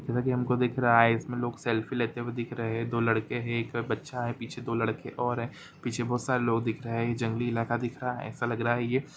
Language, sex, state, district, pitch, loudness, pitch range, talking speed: Hindi, male, Jharkhand, Jamtara, 120 Hz, -29 LUFS, 115-125 Hz, 280 wpm